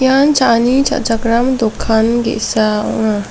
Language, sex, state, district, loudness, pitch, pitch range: Garo, female, Meghalaya, South Garo Hills, -14 LUFS, 230 Hz, 220-260 Hz